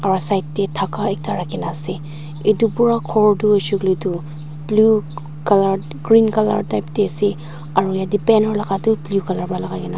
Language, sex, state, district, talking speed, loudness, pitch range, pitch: Nagamese, female, Nagaland, Dimapur, 185 wpm, -18 LUFS, 165-210 Hz, 195 Hz